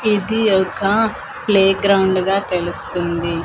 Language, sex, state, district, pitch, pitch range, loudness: Telugu, female, Andhra Pradesh, Manyam, 195 Hz, 180-205 Hz, -17 LUFS